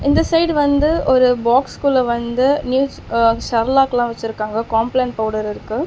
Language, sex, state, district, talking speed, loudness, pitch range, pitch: Tamil, female, Tamil Nadu, Chennai, 135 wpm, -17 LUFS, 230-270 Hz, 250 Hz